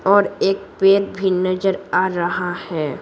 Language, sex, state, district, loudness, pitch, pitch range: Hindi, female, Bihar, Patna, -19 LUFS, 190 Hz, 180-195 Hz